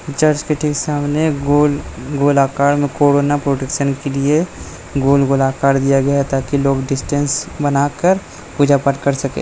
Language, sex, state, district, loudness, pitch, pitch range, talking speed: Hindi, male, Jharkhand, Sahebganj, -16 LUFS, 140 Hz, 140-145 Hz, 170 wpm